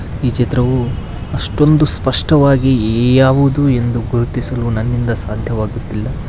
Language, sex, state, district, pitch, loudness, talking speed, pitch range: Kannada, male, Karnataka, Koppal, 120 Hz, -14 LUFS, 85 wpm, 115-130 Hz